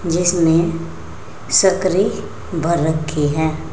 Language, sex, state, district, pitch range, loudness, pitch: Hindi, female, Uttar Pradesh, Saharanpur, 150-180 Hz, -17 LUFS, 165 Hz